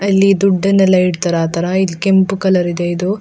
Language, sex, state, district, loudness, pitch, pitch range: Kannada, female, Karnataka, Dakshina Kannada, -14 LUFS, 190 Hz, 175-195 Hz